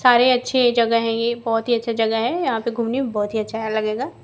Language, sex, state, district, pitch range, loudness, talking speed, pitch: Hindi, female, Bihar, Kaimur, 225-245 Hz, -20 LUFS, 255 wpm, 230 Hz